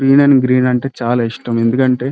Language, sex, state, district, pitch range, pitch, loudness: Telugu, male, Andhra Pradesh, Krishna, 120-135 Hz, 125 Hz, -14 LUFS